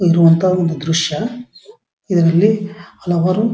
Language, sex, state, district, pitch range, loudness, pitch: Kannada, male, Karnataka, Dharwad, 170-215 Hz, -15 LUFS, 180 Hz